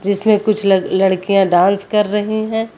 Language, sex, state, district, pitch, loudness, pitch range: Hindi, female, Uttar Pradesh, Lucknow, 200 Hz, -15 LUFS, 195-215 Hz